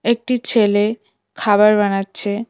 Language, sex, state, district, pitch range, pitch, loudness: Bengali, female, West Bengal, Cooch Behar, 205-230 Hz, 210 Hz, -16 LUFS